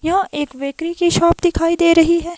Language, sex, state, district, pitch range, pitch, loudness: Hindi, female, Himachal Pradesh, Shimla, 325-345 Hz, 335 Hz, -16 LUFS